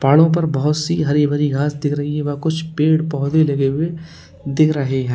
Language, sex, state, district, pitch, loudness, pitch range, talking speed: Hindi, male, Uttar Pradesh, Lalitpur, 150 Hz, -18 LUFS, 145-160 Hz, 220 wpm